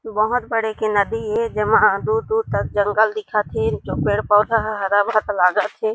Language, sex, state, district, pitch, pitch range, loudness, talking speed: Chhattisgarhi, female, Chhattisgarh, Jashpur, 215 Hz, 205-225 Hz, -19 LUFS, 170 wpm